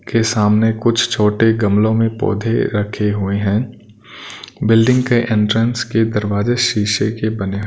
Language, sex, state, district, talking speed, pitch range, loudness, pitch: Hindi, male, Punjab, Kapurthala, 150 wpm, 105-115 Hz, -16 LUFS, 110 Hz